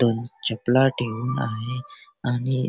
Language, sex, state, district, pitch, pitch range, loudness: Marathi, male, Maharashtra, Chandrapur, 125 Hz, 120-130 Hz, -25 LUFS